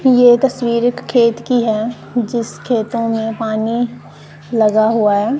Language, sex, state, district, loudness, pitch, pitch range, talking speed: Hindi, female, Punjab, Kapurthala, -15 LUFS, 235 Hz, 220-245 Hz, 145 wpm